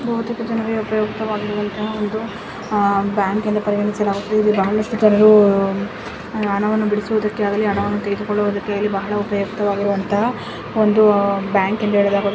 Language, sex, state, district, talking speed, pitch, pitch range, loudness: Kannada, female, Karnataka, Mysore, 100 wpm, 210 Hz, 200-215 Hz, -18 LUFS